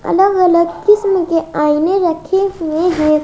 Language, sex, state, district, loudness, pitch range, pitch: Hindi, female, Haryana, Jhajjar, -14 LUFS, 320-385 Hz, 340 Hz